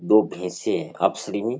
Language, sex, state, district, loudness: Rajasthani, male, Rajasthan, Churu, -24 LUFS